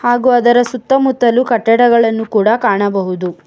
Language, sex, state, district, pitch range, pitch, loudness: Kannada, female, Karnataka, Bangalore, 210-245 Hz, 235 Hz, -12 LUFS